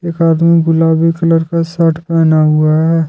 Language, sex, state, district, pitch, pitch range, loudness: Hindi, male, Jharkhand, Deoghar, 165 Hz, 160-165 Hz, -11 LUFS